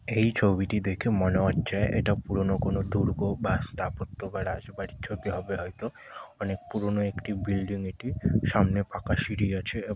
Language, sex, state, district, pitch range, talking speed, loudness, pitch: Bengali, male, West Bengal, Malda, 95-105 Hz, 150 wpm, -29 LUFS, 100 Hz